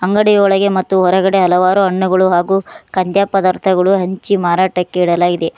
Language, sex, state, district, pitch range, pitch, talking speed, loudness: Kannada, female, Karnataka, Koppal, 180-195 Hz, 185 Hz, 130 wpm, -13 LUFS